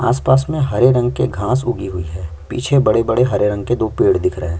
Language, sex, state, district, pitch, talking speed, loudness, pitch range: Hindi, male, Chhattisgarh, Kabirdham, 120 Hz, 245 wpm, -16 LUFS, 95-125 Hz